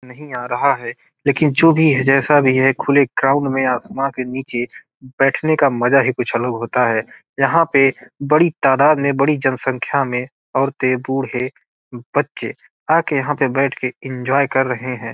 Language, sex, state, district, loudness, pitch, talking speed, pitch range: Hindi, male, Bihar, Gopalganj, -17 LUFS, 135 Hz, 180 wpm, 125-140 Hz